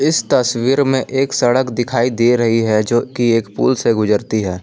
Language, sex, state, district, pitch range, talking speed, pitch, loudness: Hindi, male, Jharkhand, Palamu, 115-130 Hz, 205 wpm, 120 Hz, -15 LUFS